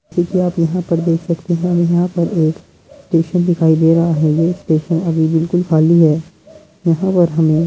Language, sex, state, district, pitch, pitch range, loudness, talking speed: Hindi, female, Uttar Pradesh, Muzaffarnagar, 170 Hz, 160-175 Hz, -15 LUFS, 205 wpm